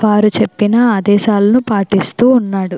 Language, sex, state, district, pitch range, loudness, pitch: Telugu, female, Andhra Pradesh, Chittoor, 200-230 Hz, -12 LUFS, 210 Hz